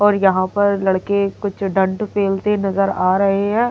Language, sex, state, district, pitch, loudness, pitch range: Hindi, female, Delhi, New Delhi, 200 Hz, -18 LUFS, 195-205 Hz